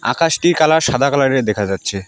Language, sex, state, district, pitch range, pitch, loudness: Bengali, male, West Bengal, Alipurduar, 105-155 Hz, 135 Hz, -15 LUFS